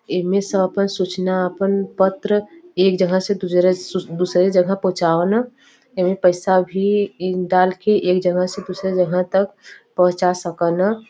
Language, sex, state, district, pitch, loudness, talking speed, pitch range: Bhojpuri, female, Uttar Pradesh, Varanasi, 185 Hz, -18 LUFS, 150 wpm, 180-195 Hz